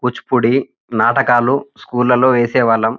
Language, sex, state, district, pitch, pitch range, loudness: Telugu, male, Telangana, Nalgonda, 125 Hz, 120-130 Hz, -15 LUFS